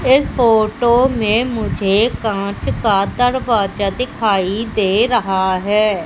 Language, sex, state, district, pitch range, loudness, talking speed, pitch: Hindi, female, Madhya Pradesh, Umaria, 200-240 Hz, -16 LUFS, 110 wpm, 220 Hz